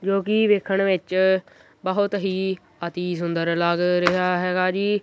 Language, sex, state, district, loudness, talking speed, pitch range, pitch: Punjabi, male, Punjab, Kapurthala, -22 LUFS, 130 wpm, 180-195 Hz, 185 Hz